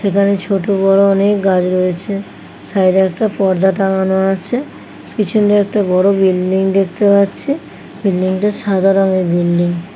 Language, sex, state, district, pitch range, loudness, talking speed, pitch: Bengali, female, West Bengal, Kolkata, 190-200 Hz, -14 LUFS, 155 wpm, 195 Hz